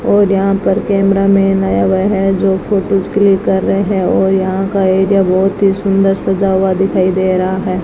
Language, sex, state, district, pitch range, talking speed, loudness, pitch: Hindi, female, Rajasthan, Bikaner, 190-195 Hz, 205 wpm, -13 LUFS, 195 Hz